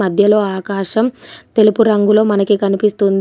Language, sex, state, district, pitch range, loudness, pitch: Telugu, female, Telangana, Komaram Bheem, 195-215 Hz, -14 LUFS, 205 Hz